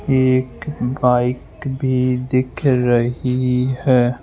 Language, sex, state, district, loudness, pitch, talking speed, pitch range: Hindi, male, Madhya Pradesh, Bhopal, -18 LUFS, 125 Hz, 85 wpm, 125-130 Hz